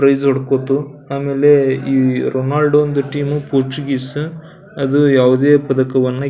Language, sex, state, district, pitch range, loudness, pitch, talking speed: Kannada, male, Karnataka, Belgaum, 135-145 Hz, -15 LUFS, 140 Hz, 105 wpm